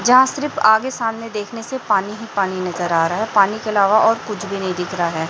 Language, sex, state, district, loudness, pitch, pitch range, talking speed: Hindi, female, Chhattisgarh, Raipur, -18 LUFS, 210 Hz, 190-225 Hz, 260 wpm